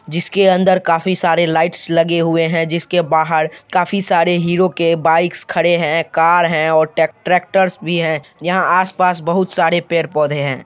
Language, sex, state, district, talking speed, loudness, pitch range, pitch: Hindi, male, Bihar, Supaul, 170 wpm, -15 LUFS, 160-180 Hz, 170 Hz